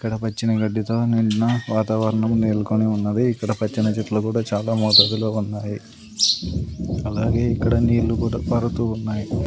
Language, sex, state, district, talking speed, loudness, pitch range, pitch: Telugu, male, Andhra Pradesh, Sri Satya Sai, 135 wpm, -21 LUFS, 110-115 Hz, 110 Hz